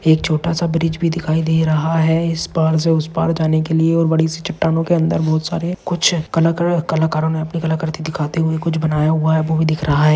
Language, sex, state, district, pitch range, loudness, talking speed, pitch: Hindi, male, Maharashtra, Dhule, 160-165 Hz, -17 LUFS, 250 wpm, 160 Hz